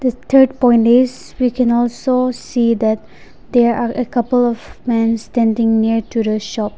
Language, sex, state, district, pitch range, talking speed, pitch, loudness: English, female, Nagaland, Dimapur, 225-250 Hz, 175 wpm, 235 Hz, -15 LUFS